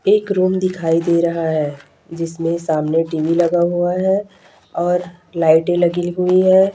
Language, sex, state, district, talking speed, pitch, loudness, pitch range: Hindi, female, Chhattisgarh, Raipur, 150 wpm, 175 Hz, -17 LUFS, 165-185 Hz